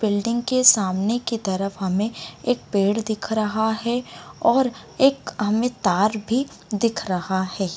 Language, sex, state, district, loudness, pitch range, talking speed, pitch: Hindi, female, Bihar, Begusarai, -22 LUFS, 200-235 Hz, 145 wpm, 220 Hz